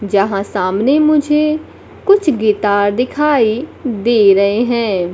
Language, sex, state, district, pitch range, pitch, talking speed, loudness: Hindi, female, Bihar, Kaimur, 205-290 Hz, 225 Hz, 105 wpm, -14 LUFS